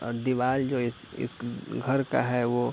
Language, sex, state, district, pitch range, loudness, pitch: Hindi, male, Chhattisgarh, Raigarh, 120-130 Hz, -28 LUFS, 125 Hz